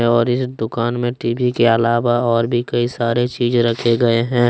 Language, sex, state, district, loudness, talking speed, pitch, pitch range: Hindi, male, Jharkhand, Deoghar, -17 LUFS, 200 wpm, 120 Hz, 115-120 Hz